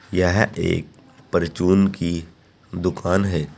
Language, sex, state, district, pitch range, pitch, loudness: Hindi, male, Uttar Pradesh, Saharanpur, 85-95 Hz, 90 Hz, -21 LUFS